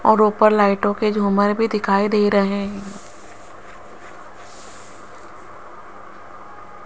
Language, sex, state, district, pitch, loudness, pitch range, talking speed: Hindi, female, Rajasthan, Jaipur, 205 Hz, -18 LUFS, 200-215 Hz, 85 wpm